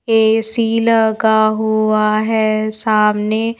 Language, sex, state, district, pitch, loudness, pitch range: Hindi, female, Madhya Pradesh, Bhopal, 220 Hz, -15 LUFS, 215-225 Hz